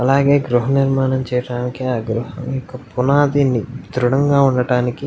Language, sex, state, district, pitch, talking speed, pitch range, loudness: Telugu, male, Andhra Pradesh, Anantapur, 130 Hz, 105 wpm, 125-135 Hz, -17 LUFS